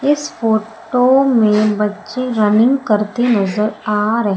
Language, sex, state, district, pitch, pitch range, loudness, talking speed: Hindi, female, Madhya Pradesh, Umaria, 220 Hz, 210-250 Hz, -15 LUFS, 125 wpm